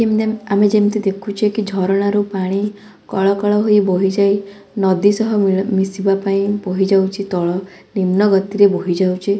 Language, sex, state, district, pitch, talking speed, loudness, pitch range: Odia, female, Odisha, Khordha, 200 Hz, 135 wpm, -16 LUFS, 190-205 Hz